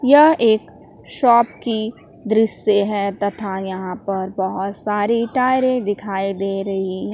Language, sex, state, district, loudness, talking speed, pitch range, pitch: Hindi, female, Jharkhand, Palamu, -19 LUFS, 135 wpm, 195-230 Hz, 205 Hz